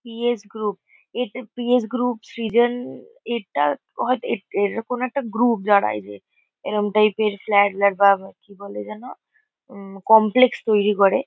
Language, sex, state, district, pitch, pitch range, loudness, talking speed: Bengali, female, West Bengal, Kolkata, 220 Hz, 200-245 Hz, -21 LUFS, 155 wpm